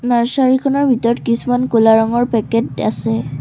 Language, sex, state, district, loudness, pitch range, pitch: Assamese, female, Assam, Sonitpur, -15 LUFS, 220-245 Hz, 235 Hz